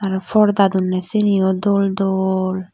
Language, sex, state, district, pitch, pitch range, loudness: Chakma, female, Tripura, Dhalai, 190 Hz, 190-200 Hz, -17 LUFS